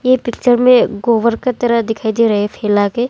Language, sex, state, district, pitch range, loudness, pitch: Hindi, female, Arunachal Pradesh, Longding, 220-245 Hz, -14 LUFS, 235 Hz